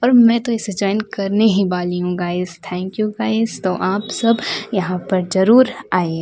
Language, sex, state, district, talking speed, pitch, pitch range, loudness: Hindi, female, Delhi, New Delhi, 195 wpm, 200 Hz, 180-225 Hz, -18 LUFS